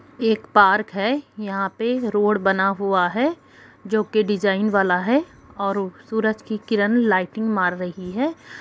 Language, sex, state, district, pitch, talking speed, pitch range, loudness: Hindi, female, Jharkhand, Sahebganj, 210 Hz, 155 wpm, 195-225 Hz, -21 LUFS